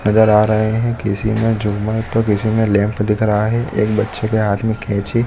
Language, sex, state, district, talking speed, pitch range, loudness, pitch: Hindi, male, Chhattisgarh, Bilaspur, 240 wpm, 105-110 Hz, -17 LUFS, 110 Hz